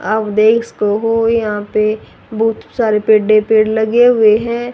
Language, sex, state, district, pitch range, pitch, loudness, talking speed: Hindi, female, Haryana, Rohtak, 215-230 Hz, 220 Hz, -13 LUFS, 175 wpm